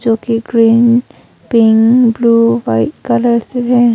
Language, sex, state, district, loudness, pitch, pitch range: Hindi, female, Arunachal Pradesh, Longding, -11 LUFS, 235 Hz, 225-240 Hz